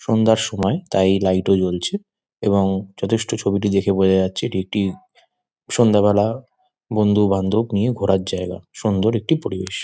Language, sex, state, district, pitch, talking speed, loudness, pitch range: Bengali, male, West Bengal, Kolkata, 100 Hz, 140 wpm, -19 LUFS, 95-115 Hz